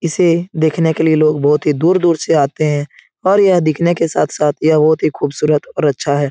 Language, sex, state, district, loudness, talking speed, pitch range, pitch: Hindi, male, Bihar, Supaul, -14 LUFS, 220 wpm, 150-170 Hz, 155 Hz